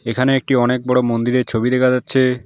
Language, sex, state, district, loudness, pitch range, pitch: Bengali, male, West Bengal, Alipurduar, -17 LUFS, 120-130 Hz, 125 Hz